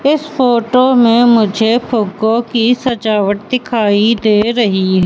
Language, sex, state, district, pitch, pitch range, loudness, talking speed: Hindi, female, Madhya Pradesh, Katni, 230 Hz, 215-245 Hz, -12 LUFS, 120 wpm